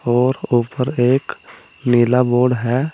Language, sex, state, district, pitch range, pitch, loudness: Hindi, male, Uttar Pradesh, Saharanpur, 120-125 Hz, 125 Hz, -17 LUFS